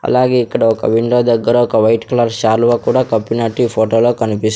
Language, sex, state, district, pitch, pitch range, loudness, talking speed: Telugu, male, Andhra Pradesh, Sri Satya Sai, 115 Hz, 110-120 Hz, -14 LUFS, 210 wpm